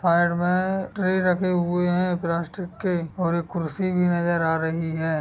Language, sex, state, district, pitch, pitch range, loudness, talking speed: Hindi, male, Bihar, Sitamarhi, 175 Hz, 170-185 Hz, -24 LUFS, 185 wpm